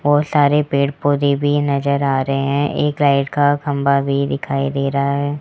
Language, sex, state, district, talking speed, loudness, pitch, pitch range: Hindi, female, Rajasthan, Jaipur, 200 wpm, -17 LUFS, 140 Hz, 140-145 Hz